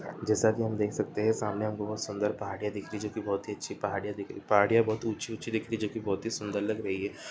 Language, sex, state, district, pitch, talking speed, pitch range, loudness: Hindi, male, Chhattisgarh, Korba, 105 Hz, 305 wpm, 105-110 Hz, -31 LUFS